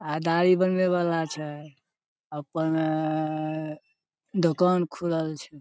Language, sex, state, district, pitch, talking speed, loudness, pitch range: Maithili, male, Bihar, Samastipur, 160 Hz, 130 wpm, -26 LUFS, 155-175 Hz